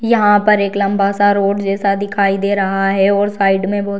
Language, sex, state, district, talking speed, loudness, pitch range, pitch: Hindi, female, Bihar, Darbhanga, 240 wpm, -14 LUFS, 195-205 Hz, 200 Hz